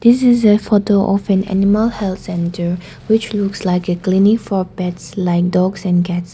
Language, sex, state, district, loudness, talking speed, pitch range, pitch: English, female, Nagaland, Dimapur, -16 LUFS, 190 wpm, 180-210 Hz, 195 Hz